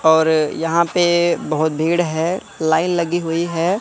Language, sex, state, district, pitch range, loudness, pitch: Hindi, male, Madhya Pradesh, Katni, 160-175 Hz, -18 LUFS, 165 Hz